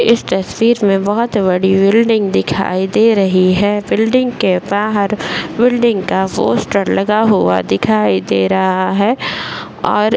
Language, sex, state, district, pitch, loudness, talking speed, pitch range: Hindi, female, Bihar, Bhagalpur, 200 Hz, -14 LUFS, 140 wpm, 185-220 Hz